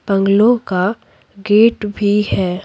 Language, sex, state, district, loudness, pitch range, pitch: Hindi, female, Bihar, Patna, -14 LUFS, 195-215 Hz, 205 Hz